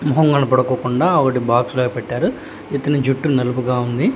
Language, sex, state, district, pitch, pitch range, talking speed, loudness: Telugu, male, Telangana, Hyderabad, 130 Hz, 125-145 Hz, 130 wpm, -18 LUFS